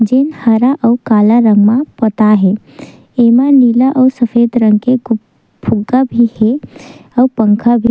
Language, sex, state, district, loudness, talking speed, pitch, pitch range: Chhattisgarhi, female, Chhattisgarh, Sukma, -11 LUFS, 165 wpm, 235 Hz, 220-255 Hz